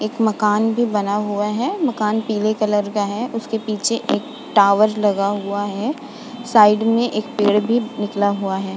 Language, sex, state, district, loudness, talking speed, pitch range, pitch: Hindi, female, Uttar Pradesh, Budaun, -19 LUFS, 180 wpm, 205-230 Hz, 215 Hz